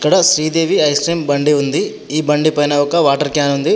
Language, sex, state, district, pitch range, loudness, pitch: Telugu, male, Telangana, Adilabad, 145-155 Hz, -14 LUFS, 150 Hz